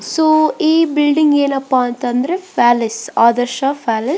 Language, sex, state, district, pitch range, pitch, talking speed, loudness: Kannada, female, Karnataka, Belgaum, 245-310 Hz, 275 Hz, 130 wpm, -14 LUFS